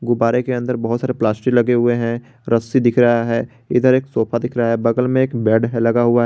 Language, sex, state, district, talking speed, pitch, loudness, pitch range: Hindi, male, Jharkhand, Garhwa, 260 wpm, 120 Hz, -17 LUFS, 115-125 Hz